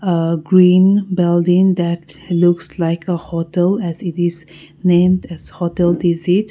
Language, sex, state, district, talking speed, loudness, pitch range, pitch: English, female, Nagaland, Kohima, 140 wpm, -15 LUFS, 170-180 Hz, 175 Hz